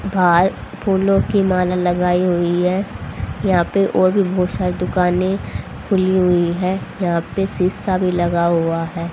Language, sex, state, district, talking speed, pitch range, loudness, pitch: Hindi, female, Haryana, Rohtak, 160 wpm, 175-190 Hz, -18 LUFS, 180 Hz